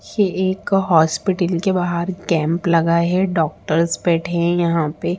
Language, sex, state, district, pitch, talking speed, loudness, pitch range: Hindi, female, Bihar, Samastipur, 170 Hz, 150 wpm, -18 LUFS, 165-185 Hz